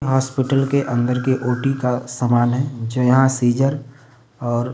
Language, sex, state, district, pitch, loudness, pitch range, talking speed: Hindi, male, Uttar Pradesh, Varanasi, 125 Hz, -19 LUFS, 120-135 Hz, 165 wpm